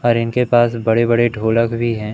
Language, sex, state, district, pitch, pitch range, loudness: Hindi, male, Madhya Pradesh, Umaria, 115 Hz, 115-120 Hz, -16 LUFS